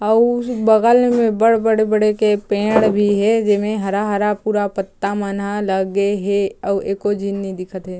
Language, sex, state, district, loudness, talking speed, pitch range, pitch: Chhattisgarhi, female, Chhattisgarh, Jashpur, -17 LUFS, 165 wpm, 200-220 Hz, 205 Hz